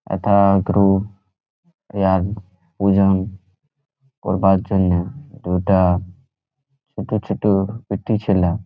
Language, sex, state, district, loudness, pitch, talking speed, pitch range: Bengali, male, West Bengal, Jhargram, -18 LUFS, 100 Hz, 70 wpm, 95-110 Hz